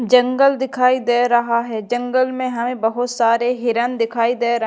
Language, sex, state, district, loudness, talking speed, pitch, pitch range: Hindi, female, Madhya Pradesh, Dhar, -18 LUFS, 180 wpm, 245 Hz, 235-250 Hz